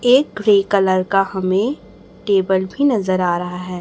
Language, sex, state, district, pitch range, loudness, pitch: Hindi, male, Chhattisgarh, Raipur, 185-210 Hz, -17 LUFS, 195 Hz